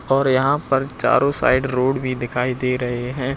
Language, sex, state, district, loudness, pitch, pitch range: Hindi, male, Uttar Pradesh, Lucknow, -19 LUFS, 130 Hz, 125-135 Hz